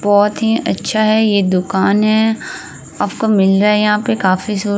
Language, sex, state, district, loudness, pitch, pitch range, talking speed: Hindi, female, Uttar Pradesh, Varanasi, -14 LUFS, 210 Hz, 200-220 Hz, 200 wpm